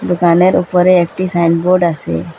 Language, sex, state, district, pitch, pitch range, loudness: Bengali, female, Assam, Hailakandi, 175 Hz, 170-180 Hz, -12 LUFS